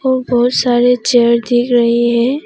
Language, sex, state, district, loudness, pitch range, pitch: Hindi, female, Arunachal Pradesh, Papum Pare, -12 LUFS, 235-250 Hz, 245 Hz